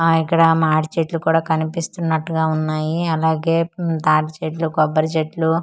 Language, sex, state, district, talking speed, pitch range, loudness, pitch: Telugu, female, Andhra Pradesh, Manyam, 140 wpm, 155-165 Hz, -19 LUFS, 160 Hz